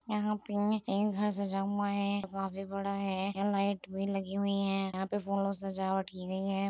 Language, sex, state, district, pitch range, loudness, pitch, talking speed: Hindi, female, Uttar Pradesh, Muzaffarnagar, 195-200 Hz, -34 LUFS, 195 Hz, 215 wpm